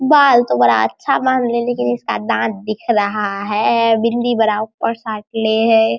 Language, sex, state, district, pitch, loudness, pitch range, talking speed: Hindi, male, Bihar, Araria, 220 Hz, -16 LUFS, 205-230 Hz, 170 wpm